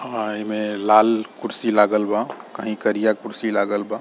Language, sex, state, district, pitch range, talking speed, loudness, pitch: Bhojpuri, male, Bihar, East Champaran, 105-110 Hz, 165 wpm, -21 LUFS, 105 Hz